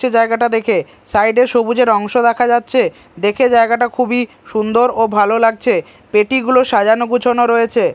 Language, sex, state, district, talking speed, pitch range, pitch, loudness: Bengali, male, Odisha, Malkangiri, 145 wpm, 225-250 Hz, 235 Hz, -14 LUFS